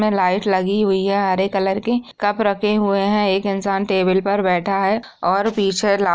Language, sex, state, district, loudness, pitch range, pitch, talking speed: Hindi, female, Bihar, Purnia, -18 LUFS, 195-205 Hz, 200 Hz, 195 wpm